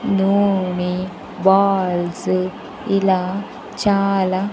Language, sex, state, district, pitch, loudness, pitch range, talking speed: Telugu, female, Andhra Pradesh, Sri Satya Sai, 190 Hz, -19 LUFS, 185-195 Hz, 55 wpm